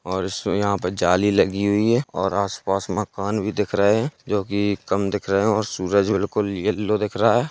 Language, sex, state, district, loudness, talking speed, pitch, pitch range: Hindi, male, Uttar Pradesh, Jalaun, -22 LUFS, 215 wpm, 100 Hz, 95-105 Hz